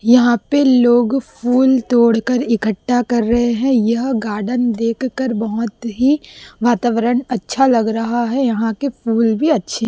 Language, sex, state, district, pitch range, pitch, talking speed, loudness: Hindi, female, Chhattisgarh, Raipur, 230-250 Hz, 240 Hz, 145 wpm, -16 LUFS